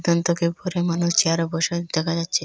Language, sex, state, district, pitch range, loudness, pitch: Bengali, female, Assam, Hailakandi, 165-170 Hz, -22 LUFS, 170 Hz